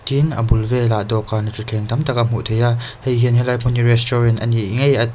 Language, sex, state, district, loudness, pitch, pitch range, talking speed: Mizo, male, Mizoram, Aizawl, -17 LUFS, 120 Hz, 115-125 Hz, 255 wpm